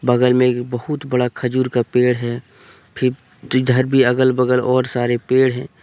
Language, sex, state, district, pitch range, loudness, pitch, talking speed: Hindi, male, Jharkhand, Deoghar, 125-130 Hz, -17 LUFS, 125 Hz, 185 wpm